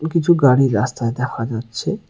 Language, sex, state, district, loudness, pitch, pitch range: Bengali, male, West Bengal, Cooch Behar, -18 LUFS, 125 Hz, 115-140 Hz